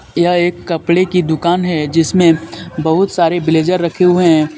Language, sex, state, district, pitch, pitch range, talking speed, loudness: Hindi, male, Jharkhand, Deoghar, 170 Hz, 165-180 Hz, 170 wpm, -13 LUFS